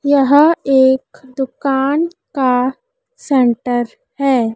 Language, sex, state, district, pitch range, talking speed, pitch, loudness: Hindi, female, Madhya Pradesh, Dhar, 255-295 Hz, 80 wpm, 270 Hz, -15 LUFS